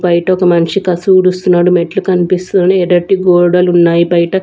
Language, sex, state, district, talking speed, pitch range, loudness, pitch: Telugu, female, Andhra Pradesh, Sri Satya Sai, 150 wpm, 175-185 Hz, -10 LUFS, 180 Hz